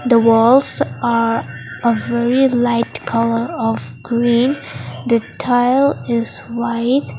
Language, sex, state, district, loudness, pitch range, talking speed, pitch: English, female, Mizoram, Aizawl, -16 LUFS, 230-245 Hz, 110 wpm, 235 Hz